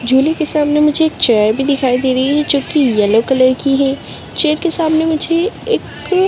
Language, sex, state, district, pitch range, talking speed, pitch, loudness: Hindi, female, Uttarakhand, Uttarkashi, 260-315 Hz, 210 wpm, 285 Hz, -14 LUFS